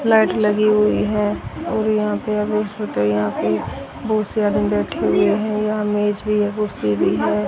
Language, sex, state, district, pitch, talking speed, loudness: Hindi, female, Haryana, Rohtak, 210 Hz, 175 wpm, -19 LUFS